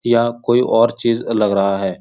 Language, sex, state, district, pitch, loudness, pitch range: Hindi, male, Bihar, Jahanabad, 115 Hz, -16 LUFS, 105-120 Hz